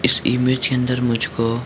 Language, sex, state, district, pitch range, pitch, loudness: Hindi, male, Jharkhand, Sahebganj, 115-130 Hz, 125 Hz, -19 LUFS